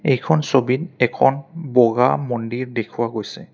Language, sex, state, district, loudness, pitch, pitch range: Assamese, male, Assam, Kamrup Metropolitan, -19 LUFS, 125 Hz, 120-140 Hz